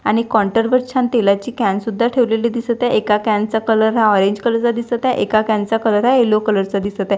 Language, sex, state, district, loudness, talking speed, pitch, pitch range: Marathi, female, Maharashtra, Washim, -16 LUFS, 250 wpm, 225 Hz, 210-235 Hz